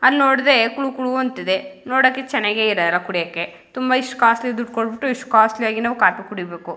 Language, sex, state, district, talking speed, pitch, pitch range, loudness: Kannada, female, Karnataka, Mysore, 175 wpm, 235 Hz, 210-260 Hz, -18 LUFS